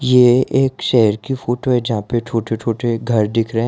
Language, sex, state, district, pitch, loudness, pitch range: Hindi, male, Gujarat, Valsad, 120 Hz, -17 LUFS, 115-125 Hz